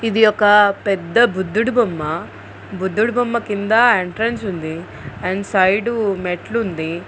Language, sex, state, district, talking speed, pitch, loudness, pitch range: Telugu, female, Andhra Pradesh, Guntur, 120 wpm, 200 Hz, -17 LUFS, 180-225 Hz